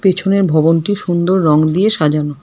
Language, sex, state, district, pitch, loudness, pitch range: Bengali, female, West Bengal, Alipurduar, 175 Hz, -13 LUFS, 155-195 Hz